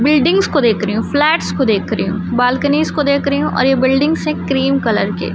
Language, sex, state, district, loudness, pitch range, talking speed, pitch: Hindi, female, Chhattisgarh, Raipur, -15 LUFS, 215-290 Hz, 255 wpm, 265 Hz